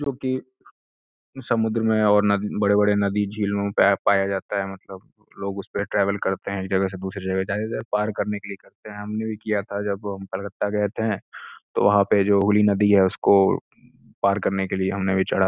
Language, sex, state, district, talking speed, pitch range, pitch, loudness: Hindi, male, Uttar Pradesh, Gorakhpur, 230 wpm, 95-105 Hz, 100 Hz, -23 LUFS